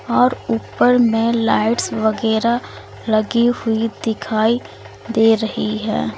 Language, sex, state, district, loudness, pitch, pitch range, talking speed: Hindi, female, Uttar Pradesh, Lalitpur, -18 LUFS, 225 Hz, 215-230 Hz, 105 wpm